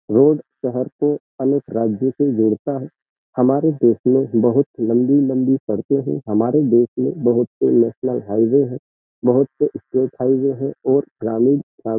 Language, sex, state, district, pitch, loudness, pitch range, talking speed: Hindi, male, Uttar Pradesh, Jyotiba Phule Nagar, 130 Hz, -18 LUFS, 120-140 Hz, 155 wpm